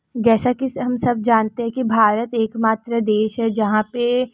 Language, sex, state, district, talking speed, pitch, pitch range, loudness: Hindi, female, West Bengal, Purulia, 180 wpm, 230 Hz, 220-245 Hz, -19 LUFS